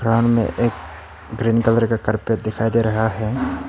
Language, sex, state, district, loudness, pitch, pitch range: Hindi, male, Arunachal Pradesh, Papum Pare, -19 LUFS, 115 Hz, 110-115 Hz